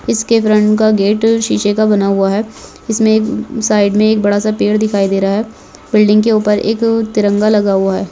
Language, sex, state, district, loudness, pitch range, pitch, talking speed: Hindi, male, Rajasthan, Churu, -13 LUFS, 205-220 Hz, 215 Hz, 215 wpm